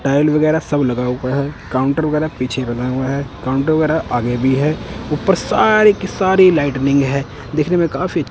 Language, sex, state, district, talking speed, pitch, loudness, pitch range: Hindi, male, Punjab, Kapurthala, 190 wpm, 140 Hz, -16 LUFS, 130-155 Hz